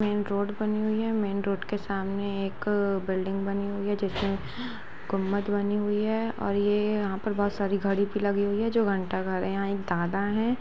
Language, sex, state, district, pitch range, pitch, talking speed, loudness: Hindi, female, Jharkhand, Jamtara, 195-210 Hz, 200 Hz, 220 wpm, -28 LUFS